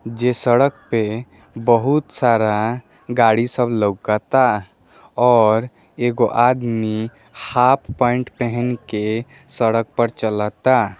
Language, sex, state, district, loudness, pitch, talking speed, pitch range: Bhojpuri, male, Bihar, East Champaran, -18 LUFS, 115 Hz, 100 wpm, 110-125 Hz